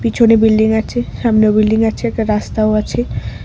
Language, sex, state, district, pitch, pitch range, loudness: Bengali, female, Tripura, West Tripura, 220 Hz, 215-225 Hz, -14 LUFS